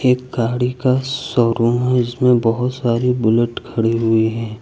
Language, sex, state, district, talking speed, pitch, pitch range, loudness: Hindi, male, Uttar Pradesh, Lucknow, 155 wpm, 120 Hz, 115-125 Hz, -17 LUFS